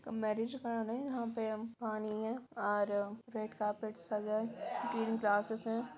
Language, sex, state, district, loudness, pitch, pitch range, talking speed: Hindi, female, Bihar, Sitamarhi, -38 LUFS, 220 Hz, 215-230 Hz, 160 wpm